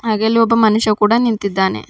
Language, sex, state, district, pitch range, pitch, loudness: Kannada, female, Karnataka, Bidar, 210-230 Hz, 220 Hz, -14 LUFS